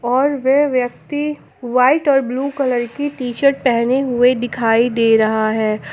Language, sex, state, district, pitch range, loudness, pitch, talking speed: Hindi, female, Jharkhand, Palamu, 235-275 Hz, -16 LUFS, 250 Hz, 160 wpm